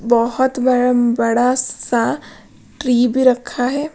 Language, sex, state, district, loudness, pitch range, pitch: Hindi, female, Punjab, Pathankot, -16 LUFS, 240-255 Hz, 245 Hz